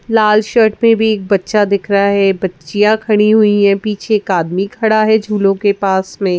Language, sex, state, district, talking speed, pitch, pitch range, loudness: Hindi, female, Madhya Pradesh, Bhopal, 205 wpm, 205 Hz, 195-215 Hz, -13 LUFS